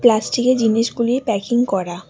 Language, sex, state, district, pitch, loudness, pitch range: Bengali, female, West Bengal, Alipurduar, 230 Hz, -18 LUFS, 210-240 Hz